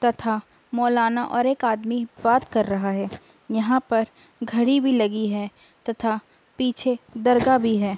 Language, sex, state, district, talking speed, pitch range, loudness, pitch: Hindi, female, Uttar Pradesh, Budaun, 150 wpm, 220-245 Hz, -23 LUFS, 235 Hz